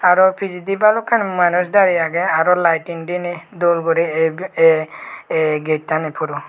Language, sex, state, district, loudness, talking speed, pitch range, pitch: Chakma, male, Tripura, West Tripura, -17 LUFS, 155 wpm, 160-185 Hz, 170 Hz